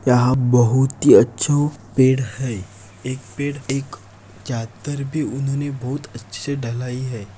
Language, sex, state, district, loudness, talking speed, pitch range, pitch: Hindi, male, Maharashtra, Dhule, -20 LUFS, 140 wpm, 115-140 Hz, 125 Hz